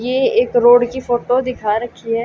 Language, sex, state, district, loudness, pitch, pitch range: Hindi, female, Haryana, Charkhi Dadri, -15 LUFS, 245 Hz, 235-255 Hz